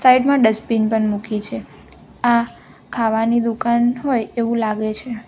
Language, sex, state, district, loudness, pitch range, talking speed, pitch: Gujarati, female, Gujarat, Valsad, -18 LUFS, 220-240 Hz, 135 wpm, 230 Hz